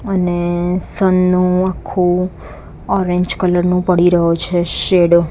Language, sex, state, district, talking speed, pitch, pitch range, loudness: Gujarati, female, Gujarat, Gandhinagar, 135 wpm, 180 Hz, 175-185 Hz, -15 LUFS